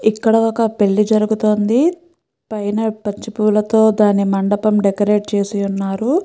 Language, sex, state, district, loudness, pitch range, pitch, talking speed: Telugu, female, Andhra Pradesh, Chittoor, -16 LUFS, 205-220 Hz, 215 Hz, 115 wpm